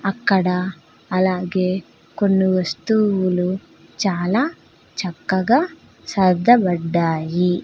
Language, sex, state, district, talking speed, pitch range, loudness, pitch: Telugu, female, Andhra Pradesh, Sri Satya Sai, 55 wpm, 180-195 Hz, -19 LUFS, 185 Hz